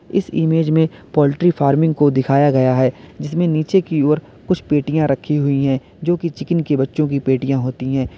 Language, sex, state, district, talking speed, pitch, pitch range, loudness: Hindi, male, Uttar Pradesh, Lalitpur, 200 wpm, 145 Hz, 135-160 Hz, -17 LUFS